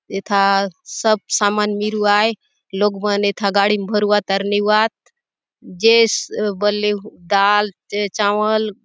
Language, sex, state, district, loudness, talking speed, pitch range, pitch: Halbi, female, Chhattisgarh, Bastar, -17 LUFS, 120 wpm, 200-215 Hz, 205 Hz